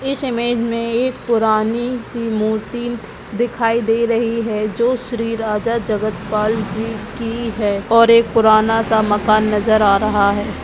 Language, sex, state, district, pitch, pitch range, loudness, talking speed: Hindi, female, Chhattisgarh, Raigarh, 225 Hz, 215-235 Hz, -17 LUFS, 145 wpm